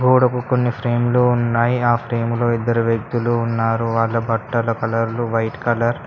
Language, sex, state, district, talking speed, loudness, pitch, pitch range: Telugu, male, Telangana, Mahabubabad, 160 wpm, -19 LUFS, 120 Hz, 115-120 Hz